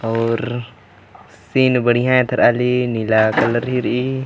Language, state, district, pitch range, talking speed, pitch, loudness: Kurukh, Chhattisgarh, Jashpur, 115-125 Hz, 140 wpm, 120 Hz, -17 LUFS